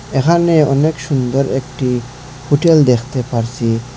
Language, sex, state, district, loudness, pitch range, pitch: Bengali, male, Assam, Hailakandi, -15 LUFS, 125-145 Hz, 135 Hz